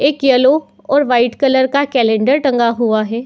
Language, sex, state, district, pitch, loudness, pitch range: Hindi, female, Uttar Pradesh, Muzaffarnagar, 260 Hz, -14 LUFS, 235-275 Hz